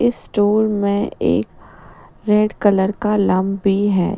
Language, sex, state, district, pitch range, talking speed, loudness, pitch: Hindi, female, Bihar, Patna, 195-210 Hz, 145 wpm, -17 LUFS, 205 Hz